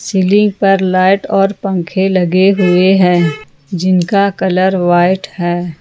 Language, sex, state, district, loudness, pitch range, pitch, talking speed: Hindi, female, Jharkhand, Ranchi, -12 LUFS, 175-195 Hz, 185 Hz, 125 wpm